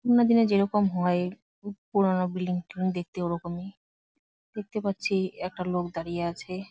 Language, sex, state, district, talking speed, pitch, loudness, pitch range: Bengali, female, West Bengal, Jalpaiguri, 145 wpm, 185 Hz, -28 LUFS, 180-200 Hz